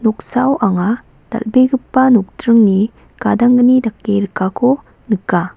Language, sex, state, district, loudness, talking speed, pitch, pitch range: Garo, female, Meghalaya, West Garo Hills, -14 LUFS, 85 wpm, 230 Hz, 205-255 Hz